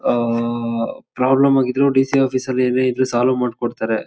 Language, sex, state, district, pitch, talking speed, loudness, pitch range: Kannada, male, Karnataka, Shimoga, 125 Hz, 135 wpm, -18 LUFS, 120-130 Hz